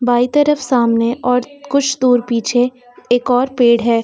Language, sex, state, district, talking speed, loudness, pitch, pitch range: Hindi, female, Uttar Pradesh, Lucknow, 165 wpm, -15 LUFS, 245 Hz, 240-260 Hz